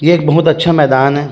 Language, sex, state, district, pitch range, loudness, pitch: Chhattisgarhi, male, Chhattisgarh, Rajnandgaon, 145-165 Hz, -11 LUFS, 155 Hz